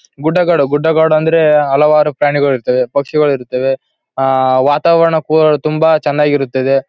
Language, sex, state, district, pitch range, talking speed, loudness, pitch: Kannada, male, Karnataka, Bellary, 135-155 Hz, 115 wpm, -12 LUFS, 145 Hz